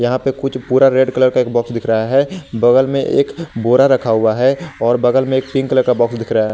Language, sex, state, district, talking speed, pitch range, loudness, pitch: Hindi, male, Jharkhand, Garhwa, 275 wpm, 120-135 Hz, -15 LUFS, 130 Hz